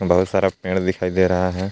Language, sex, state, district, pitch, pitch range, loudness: Hindi, male, Jharkhand, Garhwa, 95 Hz, 90-95 Hz, -20 LUFS